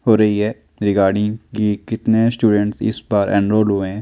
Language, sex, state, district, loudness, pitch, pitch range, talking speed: Hindi, male, Chandigarh, Chandigarh, -17 LUFS, 105 Hz, 100-110 Hz, 180 wpm